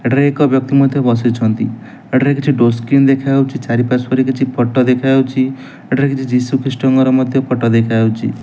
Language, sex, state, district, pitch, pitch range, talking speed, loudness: Odia, male, Odisha, Nuapada, 130 Hz, 125-135 Hz, 185 wpm, -14 LUFS